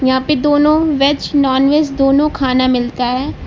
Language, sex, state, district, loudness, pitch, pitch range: Hindi, female, Uttar Pradesh, Lucknow, -13 LUFS, 275 Hz, 260-295 Hz